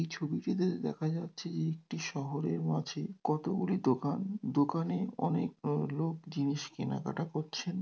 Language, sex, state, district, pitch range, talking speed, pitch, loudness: Bengali, male, West Bengal, North 24 Parganas, 145-175 Hz, 130 wpm, 160 Hz, -35 LUFS